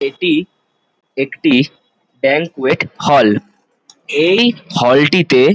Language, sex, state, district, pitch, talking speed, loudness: Bengali, male, West Bengal, Jalpaiguri, 170 Hz, 75 wpm, -14 LUFS